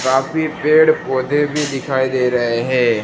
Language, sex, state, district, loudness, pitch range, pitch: Hindi, male, Gujarat, Gandhinagar, -16 LUFS, 125-150 Hz, 130 Hz